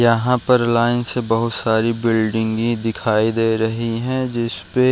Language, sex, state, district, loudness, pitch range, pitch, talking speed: Hindi, male, Uttarakhand, Uttarkashi, -19 LUFS, 110-120 Hz, 115 Hz, 160 wpm